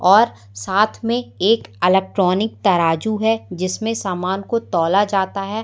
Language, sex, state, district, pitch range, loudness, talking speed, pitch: Hindi, female, Madhya Pradesh, Umaria, 185-220 Hz, -19 LUFS, 140 wpm, 195 Hz